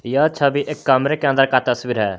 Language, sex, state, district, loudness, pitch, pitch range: Hindi, male, Jharkhand, Garhwa, -18 LUFS, 135 Hz, 125-145 Hz